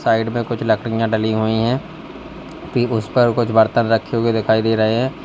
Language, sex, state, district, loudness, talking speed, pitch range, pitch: Hindi, male, Uttar Pradesh, Lalitpur, -18 LUFS, 205 wpm, 110-120 Hz, 115 Hz